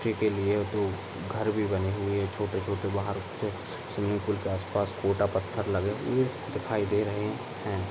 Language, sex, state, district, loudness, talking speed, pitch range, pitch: Hindi, male, Maharashtra, Aurangabad, -30 LUFS, 165 wpm, 100-105 Hz, 100 Hz